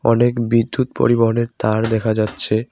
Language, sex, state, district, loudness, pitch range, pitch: Bengali, male, West Bengal, Cooch Behar, -18 LUFS, 110-120 Hz, 115 Hz